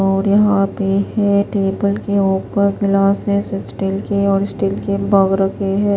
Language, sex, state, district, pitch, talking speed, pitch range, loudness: Hindi, female, Maharashtra, Washim, 200 Hz, 150 wpm, 195-200 Hz, -16 LUFS